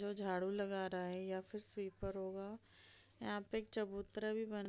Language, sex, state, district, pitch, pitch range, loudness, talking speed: Hindi, female, Bihar, East Champaran, 200 Hz, 190-210 Hz, -44 LUFS, 205 wpm